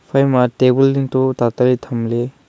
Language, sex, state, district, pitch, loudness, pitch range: Wancho, male, Arunachal Pradesh, Longding, 125 Hz, -16 LUFS, 120-135 Hz